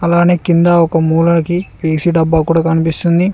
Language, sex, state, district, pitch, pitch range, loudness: Telugu, male, Telangana, Mahabubabad, 170 Hz, 165-175 Hz, -12 LUFS